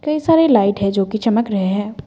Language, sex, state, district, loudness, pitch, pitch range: Hindi, female, Assam, Kamrup Metropolitan, -16 LUFS, 220 Hz, 200-270 Hz